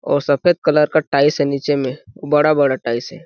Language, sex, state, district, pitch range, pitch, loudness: Hindi, male, Chhattisgarh, Balrampur, 140-155 Hz, 145 Hz, -16 LUFS